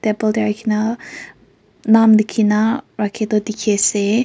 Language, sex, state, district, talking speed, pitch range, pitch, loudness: Nagamese, female, Nagaland, Kohima, 125 wpm, 210-220 Hz, 215 Hz, -16 LUFS